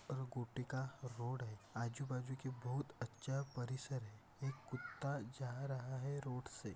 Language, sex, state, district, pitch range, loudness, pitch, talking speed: Hindi, male, Maharashtra, Dhule, 120-135 Hz, -46 LUFS, 130 Hz, 140 wpm